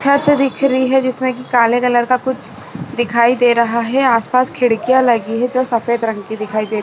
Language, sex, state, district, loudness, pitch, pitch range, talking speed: Hindi, female, Chhattisgarh, Balrampur, -15 LUFS, 245 Hz, 235-260 Hz, 195 wpm